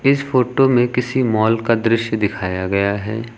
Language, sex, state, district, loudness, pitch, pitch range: Hindi, male, Uttar Pradesh, Lucknow, -17 LUFS, 115 Hz, 110-125 Hz